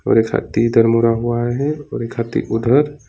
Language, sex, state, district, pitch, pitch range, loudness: Hindi, male, West Bengal, Alipurduar, 115 Hz, 115-135 Hz, -17 LUFS